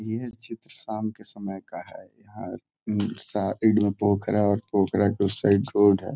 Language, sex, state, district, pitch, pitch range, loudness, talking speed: Hindi, male, Bihar, Gopalganj, 105 Hz, 100-110 Hz, -25 LUFS, 155 wpm